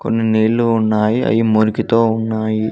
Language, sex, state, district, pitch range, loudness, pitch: Telugu, male, Telangana, Mahabubabad, 110-115 Hz, -15 LUFS, 110 Hz